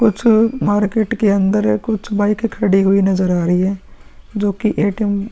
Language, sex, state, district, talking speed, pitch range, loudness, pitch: Hindi, male, Uttar Pradesh, Muzaffarnagar, 170 wpm, 195-220 Hz, -16 LUFS, 205 Hz